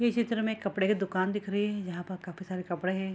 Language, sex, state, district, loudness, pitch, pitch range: Hindi, female, Bihar, Kishanganj, -31 LUFS, 190 Hz, 185-205 Hz